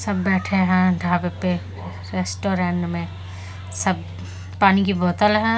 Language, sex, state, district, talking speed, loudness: Hindi, female, Delhi, New Delhi, 130 wpm, -21 LUFS